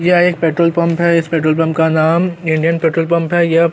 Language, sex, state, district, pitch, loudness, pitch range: Hindi, male, Chhattisgarh, Korba, 165 Hz, -14 LUFS, 160-170 Hz